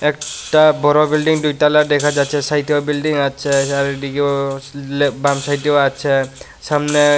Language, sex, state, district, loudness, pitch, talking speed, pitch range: Bengali, male, Tripura, West Tripura, -16 LUFS, 145 Hz, 125 wpm, 140-150 Hz